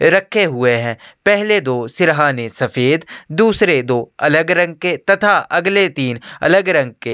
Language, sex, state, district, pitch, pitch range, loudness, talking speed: Hindi, male, Chhattisgarh, Sukma, 160 Hz, 125-195 Hz, -15 LUFS, 160 wpm